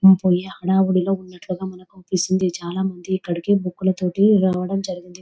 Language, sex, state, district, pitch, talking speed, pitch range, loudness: Telugu, female, Telangana, Nalgonda, 185 Hz, 115 wpm, 180-190 Hz, -21 LUFS